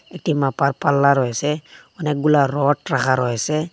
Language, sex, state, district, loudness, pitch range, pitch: Bengali, male, Assam, Hailakandi, -19 LUFS, 135-150 Hz, 140 Hz